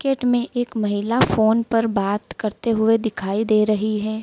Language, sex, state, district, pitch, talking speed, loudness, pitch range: Hindi, female, Madhya Pradesh, Dhar, 220 Hz, 185 wpm, -20 LUFS, 215-230 Hz